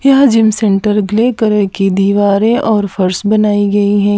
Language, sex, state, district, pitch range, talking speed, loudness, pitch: Hindi, female, Gujarat, Valsad, 200-220 Hz, 200 wpm, -11 LUFS, 205 Hz